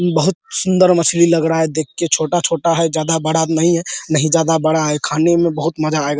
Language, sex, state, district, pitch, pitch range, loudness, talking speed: Hindi, male, Bihar, Araria, 165 Hz, 155-170 Hz, -15 LUFS, 240 wpm